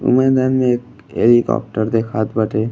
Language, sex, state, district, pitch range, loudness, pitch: Bhojpuri, male, Uttar Pradesh, Gorakhpur, 110-125 Hz, -16 LUFS, 120 Hz